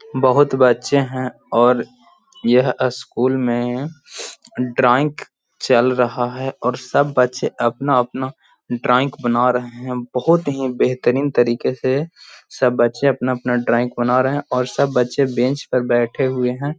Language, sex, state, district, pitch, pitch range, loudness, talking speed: Hindi, male, Bihar, Gaya, 125 Hz, 125-140 Hz, -18 LUFS, 145 wpm